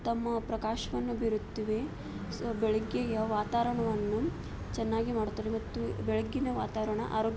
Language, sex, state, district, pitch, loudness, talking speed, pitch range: Kannada, female, Karnataka, Belgaum, 220 Hz, -33 LUFS, 115 wpm, 215-230 Hz